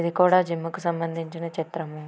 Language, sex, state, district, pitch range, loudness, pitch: Telugu, female, Andhra Pradesh, Visakhapatnam, 165-170 Hz, -25 LUFS, 165 Hz